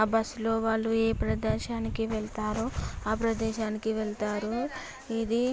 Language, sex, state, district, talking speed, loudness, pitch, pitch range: Telugu, female, Andhra Pradesh, Chittoor, 130 wpm, -30 LUFS, 225 Hz, 215-225 Hz